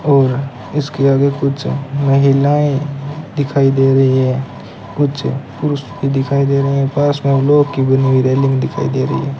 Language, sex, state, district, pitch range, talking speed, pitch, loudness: Hindi, male, Rajasthan, Bikaner, 135-140 Hz, 170 wpm, 140 Hz, -15 LUFS